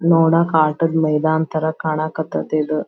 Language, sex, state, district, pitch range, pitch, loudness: Kannada, female, Karnataka, Belgaum, 155-165 Hz, 160 Hz, -18 LUFS